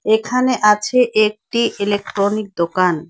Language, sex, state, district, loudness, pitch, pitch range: Bengali, female, West Bengal, Alipurduar, -17 LUFS, 215 Hz, 200-235 Hz